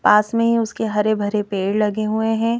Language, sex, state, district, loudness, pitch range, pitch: Hindi, female, Madhya Pradesh, Bhopal, -19 LUFS, 210-225 Hz, 215 Hz